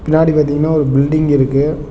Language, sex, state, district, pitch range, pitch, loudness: Tamil, male, Tamil Nadu, Namakkal, 140-155 Hz, 150 Hz, -13 LUFS